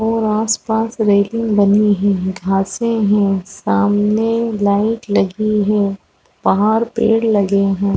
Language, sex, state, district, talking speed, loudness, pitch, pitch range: Hindi, female, Chhattisgarh, Raigarh, 130 wpm, -16 LUFS, 210 Hz, 200-225 Hz